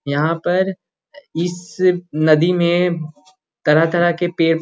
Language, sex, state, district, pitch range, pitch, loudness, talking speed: Magahi, male, Bihar, Gaya, 160-180 Hz, 175 Hz, -17 LUFS, 115 wpm